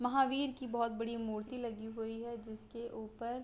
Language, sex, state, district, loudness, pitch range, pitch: Hindi, female, Uttar Pradesh, Ghazipur, -39 LUFS, 225-245 Hz, 235 Hz